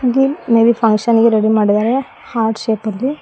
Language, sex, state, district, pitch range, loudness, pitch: Kannada, female, Karnataka, Koppal, 220-250 Hz, -14 LUFS, 230 Hz